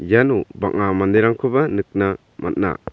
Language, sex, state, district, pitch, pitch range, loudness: Garo, male, Meghalaya, South Garo Hills, 100 Hz, 95-120 Hz, -19 LUFS